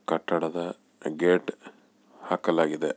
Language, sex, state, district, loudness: Kannada, male, Karnataka, Bellary, -27 LUFS